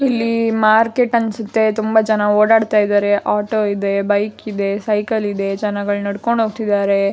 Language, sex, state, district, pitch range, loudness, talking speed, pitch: Kannada, female, Karnataka, Shimoga, 205-225 Hz, -16 LUFS, 135 wpm, 210 Hz